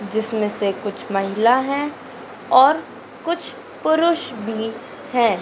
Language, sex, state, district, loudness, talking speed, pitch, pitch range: Hindi, female, Madhya Pradesh, Dhar, -20 LUFS, 110 wpm, 225 Hz, 210-280 Hz